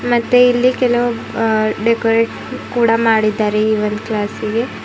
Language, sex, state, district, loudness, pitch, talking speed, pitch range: Kannada, female, Karnataka, Bidar, -15 LUFS, 225 Hz, 125 wpm, 215-240 Hz